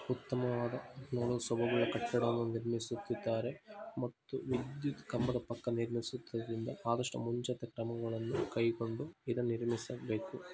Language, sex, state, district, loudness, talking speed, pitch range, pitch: Kannada, male, Karnataka, Mysore, -38 LUFS, 90 wpm, 115-125 Hz, 120 Hz